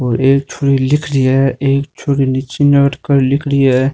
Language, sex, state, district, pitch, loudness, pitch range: Rajasthani, male, Rajasthan, Nagaur, 135 Hz, -13 LUFS, 130-140 Hz